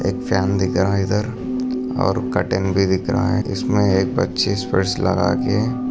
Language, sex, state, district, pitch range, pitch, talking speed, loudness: Hindi, male, Maharashtra, Sindhudurg, 95-125 Hz, 100 Hz, 160 wpm, -19 LUFS